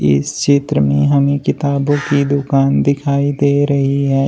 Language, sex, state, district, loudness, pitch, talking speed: Hindi, male, Uttar Pradesh, Shamli, -14 LUFS, 140 Hz, 155 wpm